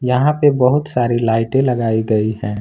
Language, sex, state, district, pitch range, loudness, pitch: Hindi, male, Jharkhand, Ranchi, 110-135 Hz, -16 LUFS, 120 Hz